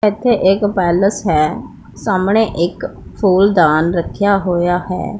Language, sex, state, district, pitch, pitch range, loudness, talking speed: Hindi, male, Punjab, Pathankot, 190 Hz, 175-205 Hz, -15 LUFS, 115 wpm